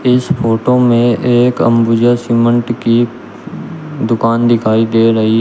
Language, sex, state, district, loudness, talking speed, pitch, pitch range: Hindi, male, Uttar Pradesh, Shamli, -12 LUFS, 135 wpm, 120 Hz, 115-120 Hz